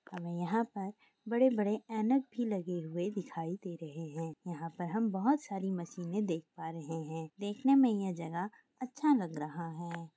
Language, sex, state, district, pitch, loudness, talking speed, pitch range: Hindi, female, Maharashtra, Aurangabad, 180 Hz, -35 LUFS, 175 wpm, 165-220 Hz